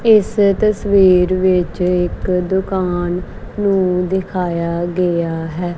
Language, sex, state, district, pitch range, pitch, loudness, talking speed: Punjabi, female, Punjab, Kapurthala, 175-190 Hz, 185 Hz, -16 LUFS, 95 wpm